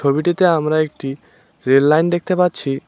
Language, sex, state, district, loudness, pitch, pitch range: Bengali, male, West Bengal, Cooch Behar, -16 LUFS, 155 Hz, 140-175 Hz